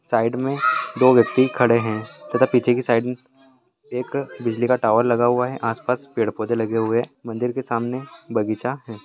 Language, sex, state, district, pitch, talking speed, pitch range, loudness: Hindi, male, Bihar, Saharsa, 120 Hz, 185 wpm, 115-130 Hz, -21 LUFS